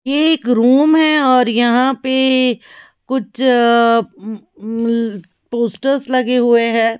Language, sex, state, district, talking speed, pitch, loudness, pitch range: Hindi, female, Chhattisgarh, Raipur, 110 wpm, 245 Hz, -14 LUFS, 230-260 Hz